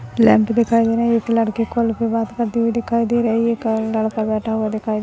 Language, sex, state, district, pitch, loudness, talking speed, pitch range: Hindi, male, Maharashtra, Nagpur, 230 Hz, -18 LUFS, 250 wpm, 220-230 Hz